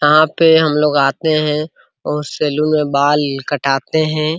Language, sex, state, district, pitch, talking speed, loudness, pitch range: Hindi, male, Bihar, Araria, 150 Hz, 150 wpm, -15 LUFS, 145-155 Hz